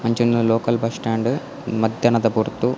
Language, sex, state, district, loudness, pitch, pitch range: Tulu, male, Karnataka, Dakshina Kannada, -20 LUFS, 115 Hz, 115-120 Hz